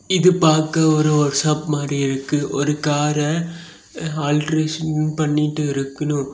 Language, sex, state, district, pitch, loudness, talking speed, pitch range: Tamil, male, Tamil Nadu, Kanyakumari, 150 Hz, -19 LUFS, 115 wpm, 145-155 Hz